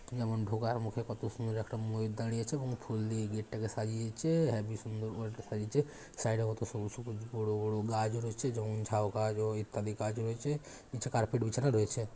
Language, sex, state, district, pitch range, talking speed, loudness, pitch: Bengali, male, West Bengal, Dakshin Dinajpur, 110-115 Hz, 195 wpm, -36 LUFS, 110 Hz